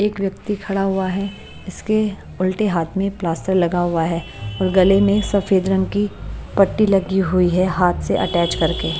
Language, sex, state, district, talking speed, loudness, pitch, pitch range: Hindi, female, Bihar, West Champaran, 185 wpm, -19 LUFS, 190 Hz, 180-200 Hz